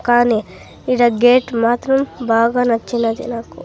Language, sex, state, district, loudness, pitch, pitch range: Telugu, female, Andhra Pradesh, Sri Satya Sai, -16 LUFS, 240 Hz, 230-245 Hz